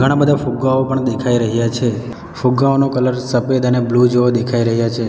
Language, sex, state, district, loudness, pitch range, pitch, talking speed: Gujarati, male, Gujarat, Valsad, -16 LUFS, 120-130 Hz, 125 Hz, 190 wpm